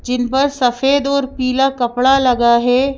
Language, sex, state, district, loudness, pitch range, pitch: Hindi, female, Madhya Pradesh, Bhopal, -15 LUFS, 245-275 Hz, 255 Hz